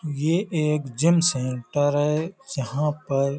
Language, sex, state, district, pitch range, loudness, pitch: Hindi, male, Uttar Pradesh, Hamirpur, 135-160 Hz, -23 LUFS, 150 Hz